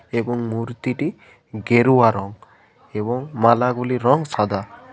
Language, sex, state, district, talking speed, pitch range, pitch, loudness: Bengali, male, West Bengal, Paschim Medinipur, 95 wpm, 110-125 Hz, 120 Hz, -20 LUFS